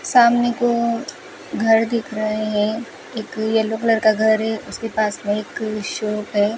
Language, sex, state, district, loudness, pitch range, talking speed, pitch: Hindi, female, Rajasthan, Bikaner, -20 LUFS, 215-235 Hz, 165 wpm, 220 Hz